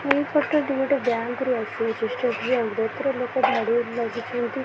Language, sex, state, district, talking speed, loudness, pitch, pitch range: Odia, female, Odisha, Khordha, 195 wpm, -24 LUFS, 245 Hz, 230-270 Hz